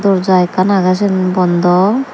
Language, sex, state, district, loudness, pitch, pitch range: Chakma, female, Tripura, Dhalai, -12 LUFS, 185 Hz, 185-200 Hz